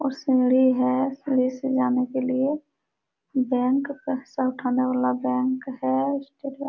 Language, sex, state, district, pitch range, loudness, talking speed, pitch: Hindi, female, Bihar, Supaul, 255-275 Hz, -24 LUFS, 125 wpm, 260 Hz